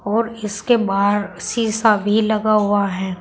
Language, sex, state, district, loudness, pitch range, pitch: Hindi, female, Uttar Pradesh, Saharanpur, -18 LUFS, 200-220 Hz, 210 Hz